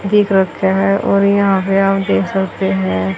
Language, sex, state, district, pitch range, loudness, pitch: Hindi, female, Haryana, Charkhi Dadri, 160-195 Hz, -14 LUFS, 195 Hz